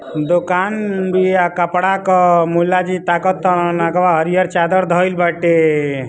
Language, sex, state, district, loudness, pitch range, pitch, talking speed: Bhojpuri, male, Uttar Pradesh, Ghazipur, -15 LUFS, 170-185 Hz, 180 Hz, 130 wpm